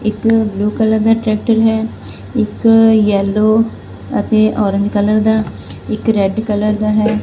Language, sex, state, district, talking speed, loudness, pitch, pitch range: Punjabi, female, Punjab, Fazilka, 140 wpm, -14 LUFS, 215 Hz, 210-220 Hz